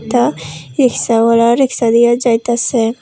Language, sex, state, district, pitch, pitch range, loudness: Bengali, female, Tripura, Unakoti, 235 Hz, 225-245 Hz, -13 LUFS